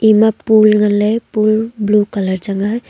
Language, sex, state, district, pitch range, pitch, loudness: Wancho, female, Arunachal Pradesh, Longding, 205-220 Hz, 215 Hz, -14 LUFS